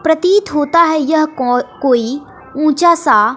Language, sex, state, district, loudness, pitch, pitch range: Hindi, female, Bihar, West Champaran, -13 LUFS, 300 Hz, 255-320 Hz